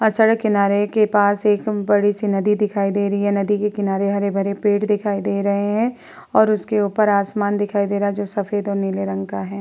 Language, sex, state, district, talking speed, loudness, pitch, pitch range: Hindi, female, Uttar Pradesh, Muzaffarnagar, 230 wpm, -19 LUFS, 205 Hz, 200-210 Hz